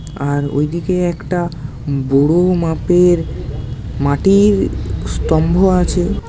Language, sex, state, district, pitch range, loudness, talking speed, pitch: Bengali, male, West Bengal, Paschim Medinipur, 135-175 Hz, -15 LUFS, 75 wpm, 155 Hz